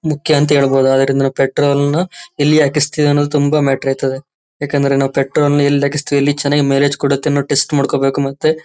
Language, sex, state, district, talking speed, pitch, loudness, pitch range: Kannada, male, Karnataka, Chamarajanagar, 185 wpm, 140 Hz, -14 LUFS, 135-145 Hz